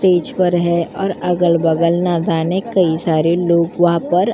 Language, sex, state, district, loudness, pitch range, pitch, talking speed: Hindi, female, Uttar Pradesh, Jyotiba Phule Nagar, -16 LUFS, 170-180 Hz, 175 Hz, 165 wpm